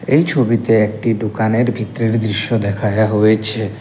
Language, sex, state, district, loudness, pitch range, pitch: Bengali, male, Assam, Kamrup Metropolitan, -16 LUFS, 110-115 Hz, 110 Hz